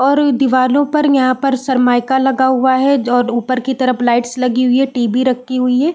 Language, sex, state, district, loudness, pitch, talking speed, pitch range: Hindi, female, Uttarakhand, Uttarkashi, -14 LUFS, 255 Hz, 210 wpm, 250-265 Hz